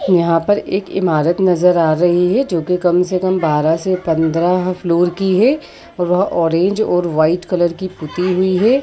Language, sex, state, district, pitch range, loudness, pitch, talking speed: Hindi, female, Uttar Pradesh, Jyotiba Phule Nagar, 170-185 Hz, -15 LUFS, 180 Hz, 190 wpm